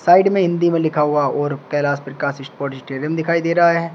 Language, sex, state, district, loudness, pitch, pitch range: Hindi, male, Uttar Pradesh, Shamli, -18 LUFS, 150 Hz, 140-170 Hz